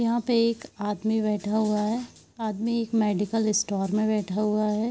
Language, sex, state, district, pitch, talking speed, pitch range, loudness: Hindi, female, Bihar, Araria, 215 Hz, 185 wpm, 210-230 Hz, -26 LUFS